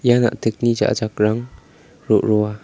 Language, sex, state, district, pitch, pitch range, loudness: Garo, male, Meghalaya, South Garo Hills, 110 Hz, 105-120 Hz, -19 LUFS